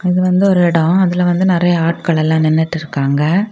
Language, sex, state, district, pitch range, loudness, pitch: Tamil, female, Tamil Nadu, Kanyakumari, 160-180 Hz, -14 LUFS, 170 Hz